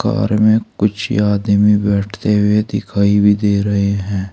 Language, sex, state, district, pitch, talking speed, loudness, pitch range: Hindi, male, Uttar Pradesh, Saharanpur, 105 Hz, 150 wpm, -15 LUFS, 100-105 Hz